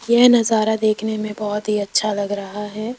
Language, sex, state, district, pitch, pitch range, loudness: Hindi, female, Rajasthan, Jaipur, 215 Hz, 210-220 Hz, -19 LUFS